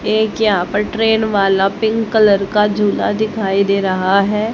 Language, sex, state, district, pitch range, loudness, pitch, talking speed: Hindi, male, Haryana, Charkhi Dadri, 195-220 Hz, -15 LUFS, 210 Hz, 170 wpm